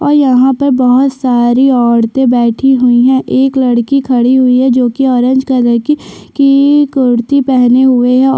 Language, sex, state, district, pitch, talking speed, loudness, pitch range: Hindi, female, Chhattisgarh, Sukma, 260 Hz, 180 wpm, -9 LUFS, 245-270 Hz